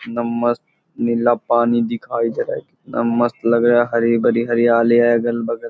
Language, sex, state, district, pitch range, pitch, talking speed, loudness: Hindi, male, Bihar, Purnia, 115-120 Hz, 120 Hz, 200 wpm, -17 LUFS